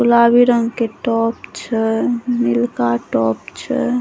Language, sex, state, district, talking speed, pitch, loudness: Maithili, female, Bihar, Saharsa, 120 wpm, 230 Hz, -17 LUFS